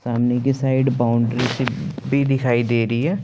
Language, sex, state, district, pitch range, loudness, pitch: Hindi, male, Chandigarh, Chandigarh, 120-135 Hz, -20 LUFS, 125 Hz